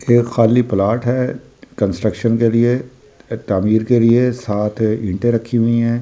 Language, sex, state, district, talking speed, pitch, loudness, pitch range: Hindi, male, Delhi, New Delhi, 140 wpm, 115 Hz, -16 LUFS, 110-120 Hz